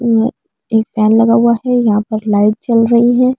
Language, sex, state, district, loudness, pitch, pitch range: Hindi, female, Delhi, New Delhi, -12 LUFS, 230 Hz, 215-240 Hz